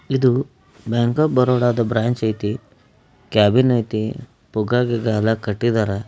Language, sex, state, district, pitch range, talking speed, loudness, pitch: Kannada, male, Karnataka, Belgaum, 110-125 Hz, 120 wpm, -19 LUFS, 115 Hz